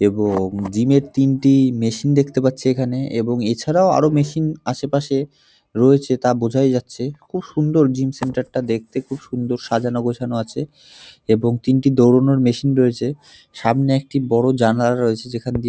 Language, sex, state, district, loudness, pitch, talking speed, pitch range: Bengali, male, West Bengal, North 24 Parganas, -18 LUFS, 130 Hz, 155 wpm, 120-135 Hz